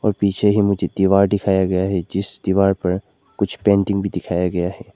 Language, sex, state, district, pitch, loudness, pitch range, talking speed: Hindi, male, Arunachal Pradesh, Lower Dibang Valley, 95 Hz, -19 LUFS, 90-100 Hz, 195 wpm